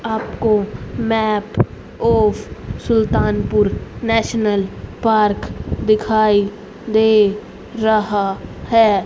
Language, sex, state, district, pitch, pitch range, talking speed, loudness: Hindi, female, Haryana, Rohtak, 215 Hz, 205-220 Hz, 60 wpm, -17 LUFS